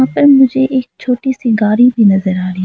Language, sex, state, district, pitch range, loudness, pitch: Hindi, female, Arunachal Pradesh, Lower Dibang Valley, 210-265 Hz, -11 LUFS, 250 Hz